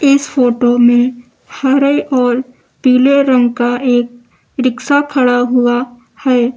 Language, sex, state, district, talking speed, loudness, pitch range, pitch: Hindi, female, Uttar Pradesh, Lucknow, 120 wpm, -12 LUFS, 245-265 Hz, 250 Hz